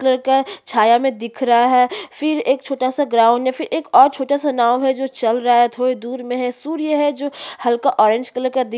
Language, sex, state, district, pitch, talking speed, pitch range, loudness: Hindi, female, Chhattisgarh, Sukma, 255 Hz, 230 wpm, 240-275 Hz, -17 LUFS